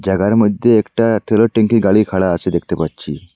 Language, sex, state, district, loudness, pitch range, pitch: Bengali, male, Assam, Hailakandi, -14 LUFS, 95-115 Hz, 105 Hz